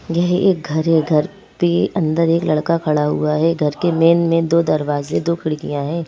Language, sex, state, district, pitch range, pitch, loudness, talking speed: Hindi, female, Madhya Pradesh, Bhopal, 155-170 Hz, 165 Hz, -17 LUFS, 205 wpm